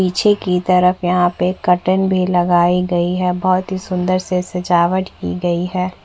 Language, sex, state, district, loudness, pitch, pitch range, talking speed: Hindi, female, Chhattisgarh, Bastar, -16 LUFS, 180 Hz, 180-185 Hz, 180 wpm